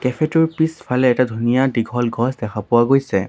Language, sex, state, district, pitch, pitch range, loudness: Assamese, male, Assam, Sonitpur, 125 Hz, 115-135 Hz, -18 LUFS